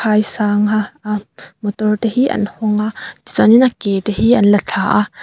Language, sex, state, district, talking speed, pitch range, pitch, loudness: Mizo, female, Mizoram, Aizawl, 230 wpm, 205-220 Hz, 210 Hz, -15 LUFS